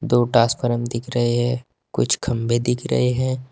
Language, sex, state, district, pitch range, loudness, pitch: Hindi, male, Uttar Pradesh, Saharanpur, 120-125 Hz, -21 LUFS, 120 Hz